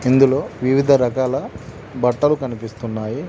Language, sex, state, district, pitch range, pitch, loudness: Telugu, male, Telangana, Mahabubabad, 120-140 Hz, 130 Hz, -19 LUFS